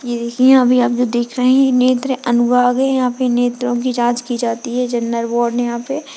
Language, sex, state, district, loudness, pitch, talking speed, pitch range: Hindi, female, Uttarakhand, Uttarkashi, -16 LUFS, 245 Hz, 245 wpm, 240-255 Hz